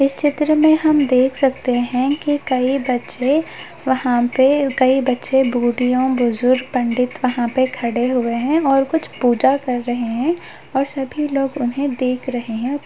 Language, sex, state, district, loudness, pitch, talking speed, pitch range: Hindi, female, Bihar, Gaya, -18 LUFS, 260 Hz, 165 wpm, 250-275 Hz